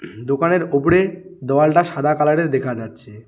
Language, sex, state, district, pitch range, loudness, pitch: Bengali, male, West Bengal, Alipurduar, 130-170 Hz, -17 LUFS, 150 Hz